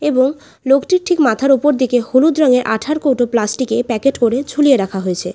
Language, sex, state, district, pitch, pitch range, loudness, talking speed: Bengali, female, West Bengal, Alipurduar, 260 Hz, 235-290 Hz, -15 LUFS, 180 wpm